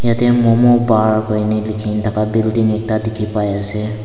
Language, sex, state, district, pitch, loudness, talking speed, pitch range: Nagamese, male, Nagaland, Dimapur, 110 Hz, -15 LUFS, 165 wpm, 105-115 Hz